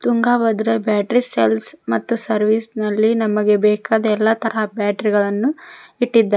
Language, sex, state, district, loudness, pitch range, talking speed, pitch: Kannada, female, Karnataka, Koppal, -18 LUFS, 210-230 Hz, 120 wpm, 220 Hz